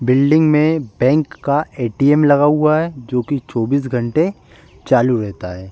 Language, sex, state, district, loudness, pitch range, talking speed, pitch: Hindi, male, Bihar, Bhagalpur, -16 LUFS, 120-150 Hz, 155 wpm, 140 Hz